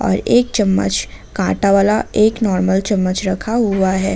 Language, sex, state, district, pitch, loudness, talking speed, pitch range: Hindi, female, Jharkhand, Ranchi, 195 Hz, -16 LUFS, 160 wpm, 185-210 Hz